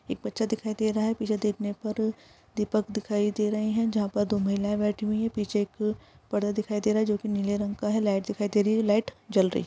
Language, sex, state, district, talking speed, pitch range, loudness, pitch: Hindi, female, Chhattisgarh, Sukma, 260 wpm, 205-215 Hz, -28 LUFS, 210 Hz